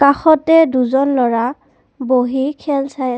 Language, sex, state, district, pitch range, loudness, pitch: Assamese, female, Assam, Kamrup Metropolitan, 255-285 Hz, -15 LUFS, 270 Hz